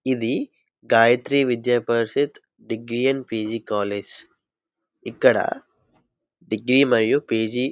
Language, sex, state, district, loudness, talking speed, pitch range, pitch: Telugu, male, Andhra Pradesh, Visakhapatnam, -21 LUFS, 95 wpm, 115-130 Hz, 120 Hz